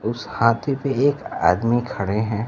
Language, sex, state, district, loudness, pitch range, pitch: Hindi, male, Bihar, Kaimur, -21 LUFS, 105-135 Hz, 115 Hz